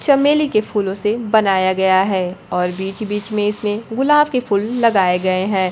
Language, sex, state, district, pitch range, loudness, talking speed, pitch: Hindi, female, Bihar, Kaimur, 190-225 Hz, -17 LUFS, 190 wpm, 205 Hz